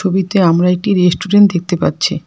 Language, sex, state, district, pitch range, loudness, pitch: Bengali, female, West Bengal, Alipurduar, 175-195 Hz, -13 LUFS, 185 Hz